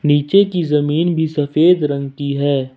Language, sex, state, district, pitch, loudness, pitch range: Hindi, male, Jharkhand, Ranchi, 150 Hz, -16 LUFS, 140-165 Hz